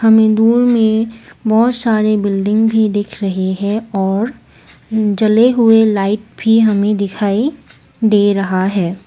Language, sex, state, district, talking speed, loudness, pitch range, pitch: Hindi, female, Assam, Kamrup Metropolitan, 130 wpm, -14 LUFS, 200-225 Hz, 215 Hz